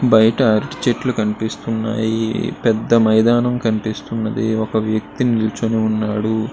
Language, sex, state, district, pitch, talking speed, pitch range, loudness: Telugu, male, Andhra Pradesh, Srikakulam, 110 Hz, 100 wpm, 110-115 Hz, -18 LUFS